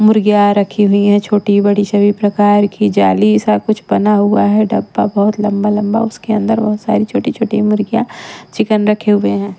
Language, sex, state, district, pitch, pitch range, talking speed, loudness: Hindi, female, Maharashtra, Washim, 210 Hz, 205-215 Hz, 180 wpm, -13 LUFS